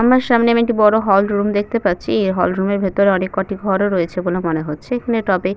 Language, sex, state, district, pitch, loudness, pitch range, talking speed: Bengali, female, West Bengal, Paschim Medinipur, 200 Hz, -17 LUFS, 185-220 Hz, 250 wpm